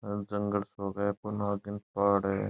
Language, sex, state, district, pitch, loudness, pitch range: Marwari, male, Rajasthan, Nagaur, 100 Hz, -32 LUFS, 100-105 Hz